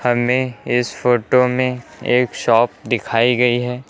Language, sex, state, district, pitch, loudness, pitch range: Hindi, male, Uttar Pradesh, Lucknow, 125 Hz, -17 LUFS, 120-125 Hz